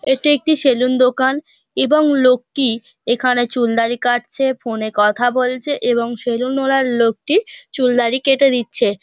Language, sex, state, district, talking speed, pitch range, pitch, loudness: Bengali, female, West Bengal, Dakshin Dinajpur, 140 wpm, 240-270 Hz, 250 Hz, -16 LUFS